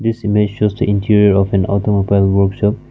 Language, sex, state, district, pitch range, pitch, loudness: English, male, Nagaland, Kohima, 100-105 Hz, 105 Hz, -14 LUFS